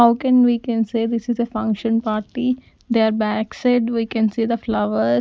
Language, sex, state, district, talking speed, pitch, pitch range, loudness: English, female, Punjab, Fazilka, 205 wpm, 230 Hz, 220-235 Hz, -20 LUFS